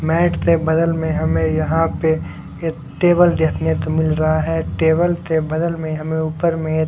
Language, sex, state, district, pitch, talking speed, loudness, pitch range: Hindi, male, Odisha, Khordha, 160 Hz, 175 wpm, -18 LUFS, 155-165 Hz